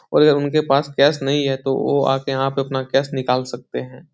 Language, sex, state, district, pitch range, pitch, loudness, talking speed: Hindi, male, Bihar, Supaul, 135-145 Hz, 135 Hz, -19 LUFS, 245 wpm